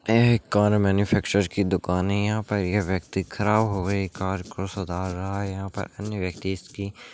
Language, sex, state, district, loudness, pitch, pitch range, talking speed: Hindi, male, Rajasthan, Churu, -25 LUFS, 100 Hz, 95-105 Hz, 200 wpm